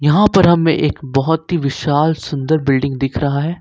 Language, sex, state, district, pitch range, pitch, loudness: Hindi, male, Jharkhand, Ranchi, 140-165 Hz, 150 Hz, -15 LUFS